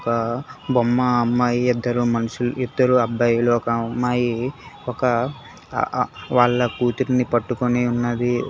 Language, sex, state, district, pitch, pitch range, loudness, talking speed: Telugu, male, Telangana, Hyderabad, 120 Hz, 120-125 Hz, -21 LUFS, 90 wpm